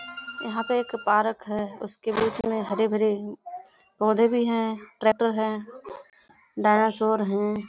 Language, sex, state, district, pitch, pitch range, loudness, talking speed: Hindi, female, Bihar, Kishanganj, 220 Hz, 210-230 Hz, -25 LUFS, 110 wpm